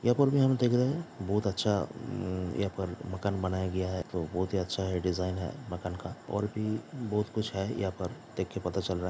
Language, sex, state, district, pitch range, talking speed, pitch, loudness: Hindi, male, Bihar, Samastipur, 90-110 Hz, 235 wpm, 95 Hz, -32 LUFS